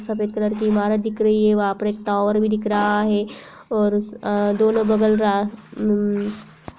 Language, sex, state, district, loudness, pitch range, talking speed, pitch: Hindi, female, Uttar Pradesh, Jalaun, -20 LUFS, 205-215 Hz, 185 wpm, 210 Hz